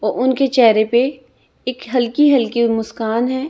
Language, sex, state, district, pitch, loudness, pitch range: Hindi, female, Chhattisgarh, Raipur, 250 Hz, -16 LUFS, 230-260 Hz